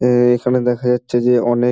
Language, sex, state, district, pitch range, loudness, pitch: Bengali, male, West Bengal, Dakshin Dinajpur, 120-125 Hz, -16 LUFS, 125 Hz